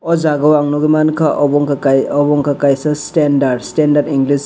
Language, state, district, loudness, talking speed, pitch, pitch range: Kokborok, Tripura, West Tripura, -13 LUFS, 200 wpm, 145 Hz, 140-150 Hz